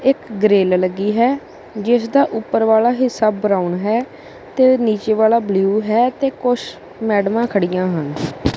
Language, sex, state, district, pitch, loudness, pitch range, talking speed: Punjabi, male, Punjab, Kapurthala, 220 Hz, -17 LUFS, 195-240 Hz, 140 wpm